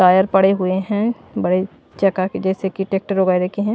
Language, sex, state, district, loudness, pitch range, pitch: Hindi, female, Maharashtra, Washim, -18 LUFS, 185-195 Hz, 190 Hz